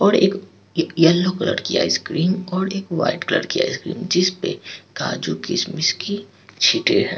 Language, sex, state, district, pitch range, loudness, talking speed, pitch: Hindi, male, Bihar, Patna, 170-195 Hz, -20 LUFS, 150 wpm, 185 Hz